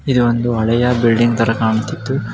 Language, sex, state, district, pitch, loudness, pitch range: Kannada, male, Karnataka, Mysore, 120 Hz, -16 LUFS, 115-125 Hz